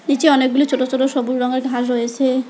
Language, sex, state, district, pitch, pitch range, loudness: Bengali, female, West Bengal, Alipurduar, 260 Hz, 250-270 Hz, -17 LUFS